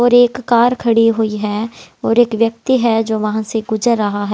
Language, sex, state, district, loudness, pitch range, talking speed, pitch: Hindi, female, Haryana, Jhajjar, -15 LUFS, 220-240 Hz, 220 wpm, 230 Hz